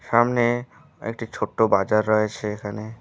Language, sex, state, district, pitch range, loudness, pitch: Bengali, male, West Bengal, Alipurduar, 110-120 Hz, -23 LUFS, 115 Hz